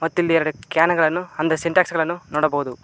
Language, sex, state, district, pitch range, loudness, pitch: Kannada, male, Karnataka, Koppal, 155-170 Hz, -20 LUFS, 160 Hz